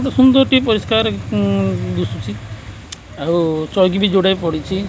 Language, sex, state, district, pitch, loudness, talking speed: Odia, male, Odisha, Khordha, 160 Hz, -16 LUFS, 135 wpm